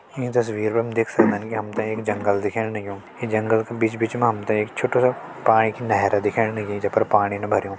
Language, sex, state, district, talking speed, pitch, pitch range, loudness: Hindi, male, Uttarakhand, Tehri Garhwal, 255 wpm, 110 Hz, 105-115 Hz, -22 LUFS